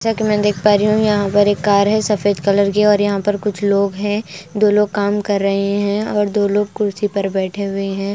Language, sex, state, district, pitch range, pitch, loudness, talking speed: Hindi, female, Bihar, West Champaran, 200-210 Hz, 205 Hz, -16 LUFS, 255 wpm